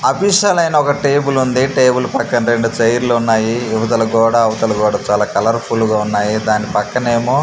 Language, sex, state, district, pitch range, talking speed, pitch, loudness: Telugu, male, Andhra Pradesh, Manyam, 110-130 Hz, 175 wpm, 115 Hz, -14 LUFS